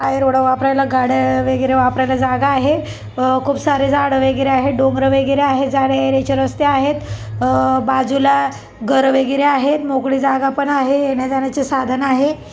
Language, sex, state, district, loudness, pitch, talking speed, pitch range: Marathi, male, Maharashtra, Pune, -16 LUFS, 270 Hz, 150 wpm, 260-275 Hz